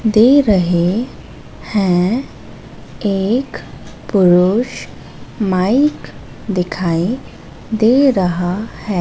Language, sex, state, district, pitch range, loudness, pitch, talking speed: Hindi, female, Madhya Pradesh, Katni, 180-230 Hz, -15 LUFS, 200 Hz, 65 wpm